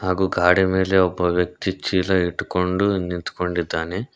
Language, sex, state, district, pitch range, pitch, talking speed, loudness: Kannada, male, Karnataka, Koppal, 90-95 Hz, 90 Hz, 115 wpm, -21 LUFS